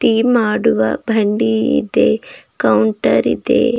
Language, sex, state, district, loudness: Kannada, female, Karnataka, Bidar, -15 LUFS